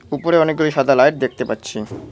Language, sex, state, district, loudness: Bengali, male, West Bengal, Cooch Behar, -17 LUFS